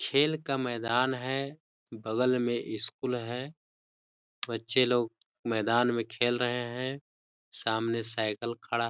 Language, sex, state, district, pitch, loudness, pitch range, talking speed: Hindi, male, Chhattisgarh, Balrampur, 120 Hz, -30 LUFS, 115-130 Hz, 130 wpm